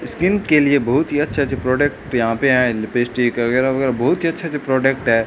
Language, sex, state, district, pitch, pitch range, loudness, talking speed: Hindi, male, Rajasthan, Bikaner, 130 Hz, 120-145 Hz, -17 LUFS, 195 wpm